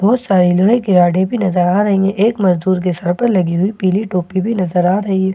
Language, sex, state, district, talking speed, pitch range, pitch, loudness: Hindi, female, Bihar, Katihar, 270 wpm, 180-205 Hz, 190 Hz, -14 LUFS